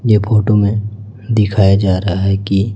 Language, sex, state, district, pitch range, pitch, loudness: Hindi, male, Chhattisgarh, Raipur, 100-105 Hz, 105 Hz, -14 LUFS